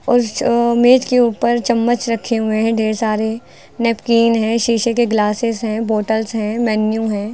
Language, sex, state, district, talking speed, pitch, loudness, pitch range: Hindi, female, Uttar Pradesh, Lucknow, 165 wpm, 230 Hz, -16 LUFS, 220-235 Hz